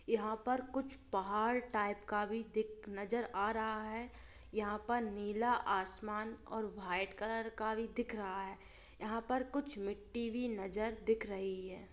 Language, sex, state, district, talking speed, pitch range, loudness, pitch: Hindi, female, Jharkhand, Jamtara, 165 wpm, 205-230 Hz, -39 LUFS, 220 Hz